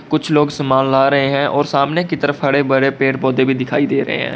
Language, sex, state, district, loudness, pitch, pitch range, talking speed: Hindi, male, Uttar Pradesh, Lalitpur, -15 LUFS, 140 Hz, 135-145 Hz, 245 wpm